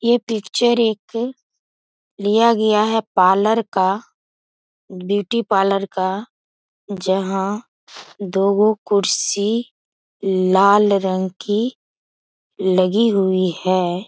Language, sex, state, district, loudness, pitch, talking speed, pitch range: Hindi, female, Bihar, Bhagalpur, -18 LUFS, 200 Hz, 90 wpm, 190-220 Hz